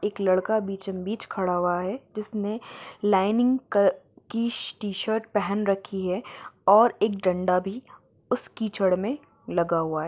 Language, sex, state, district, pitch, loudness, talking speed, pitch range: Hindi, female, Jharkhand, Jamtara, 200 Hz, -26 LUFS, 135 wpm, 185-220 Hz